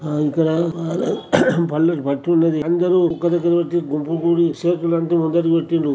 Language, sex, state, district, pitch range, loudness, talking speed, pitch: Telugu, male, Telangana, Nalgonda, 160-170 Hz, -18 LUFS, 110 wpm, 165 Hz